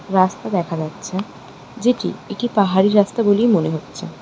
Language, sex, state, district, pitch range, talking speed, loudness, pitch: Bengali, female, West Bengal, Darjeeling, 180-215 Hz, 140 wpm, -19 LUFS, 195 Hz